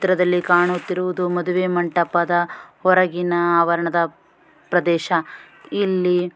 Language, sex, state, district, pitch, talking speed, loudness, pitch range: Kannada, female, Karnataka, Shimoga, 175 Hz, 75 wpm, -19 LUFS, 175-185 Hz